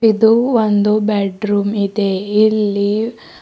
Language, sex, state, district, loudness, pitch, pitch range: Kannada, female, Karnataka, Bidar, -15 LUFS, 210 Hz, 200-220 Hz